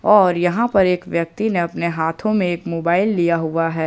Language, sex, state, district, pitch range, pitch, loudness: Hindi, male, Jharkhand, Ranchi, 170-195 Hz, 175 Hz, -18 LUFS